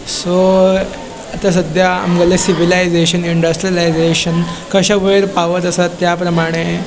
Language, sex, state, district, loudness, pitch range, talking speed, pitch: Konkani, male, Goa, North and South Goa, -13 LUFS, 170-185 Hz, 115 wpm, 175 Hz